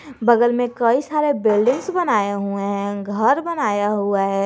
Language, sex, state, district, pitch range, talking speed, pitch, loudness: Hindi, male, Jharkhand, Garhwa, 200-265 Hz, 160 wpm, 220 Hz, -19 LUFS